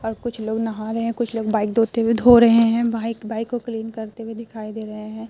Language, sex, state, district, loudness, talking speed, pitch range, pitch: Hindi, female, Bihar, Vaishali, -20 LUFS, 270 wpm, 220-230 Hz, 225 Hz